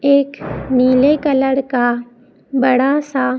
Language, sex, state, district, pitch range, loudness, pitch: Hindi, male, Chhattisgarh, Raipur, 255-280 Hz, -15 LUFS, 265 Hz